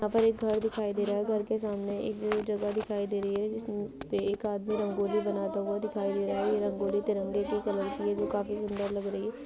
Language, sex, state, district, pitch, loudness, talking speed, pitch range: Hindi, female, Chhattisgarh, Kabirdham, 205 Hz, -31 LUFS, 260 wpm, 200-215 Hz